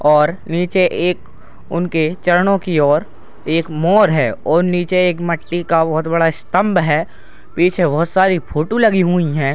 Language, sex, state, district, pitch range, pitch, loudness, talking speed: Hindi, male, Bihar, Purnia, 160-180 Hz, 170 Hz, -15 LUFS, 165 wpm